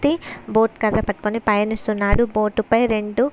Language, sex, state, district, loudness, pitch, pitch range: Telugu, female, Andhra Pradesh, Visakhapatnam, -20 LUFS, 220 Hz, 210-230 Hz